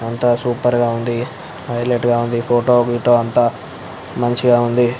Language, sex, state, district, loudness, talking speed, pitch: Telugu, male, Andhra Pradesh, Anantapur, -16 LUFS, 155 wpm, 120 Hz